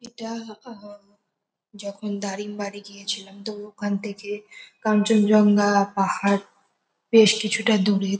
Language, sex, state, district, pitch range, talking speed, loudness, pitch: Bengali, female, West Bengal, North 24 Parganas, 200-215 Hz, 95 wpm, -22 LUFS, 205 Hz